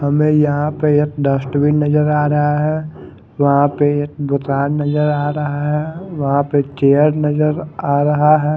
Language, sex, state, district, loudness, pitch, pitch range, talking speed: Hindi, male, Odisha, Khordha, -16 LUFS, 150 Hz, 145-150 Hz, 180 wpm